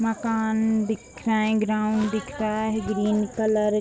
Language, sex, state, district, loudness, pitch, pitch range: Hindi, female, Bihar, Vaishali, -24 LUFS, 220 Hz, 215-220 Hz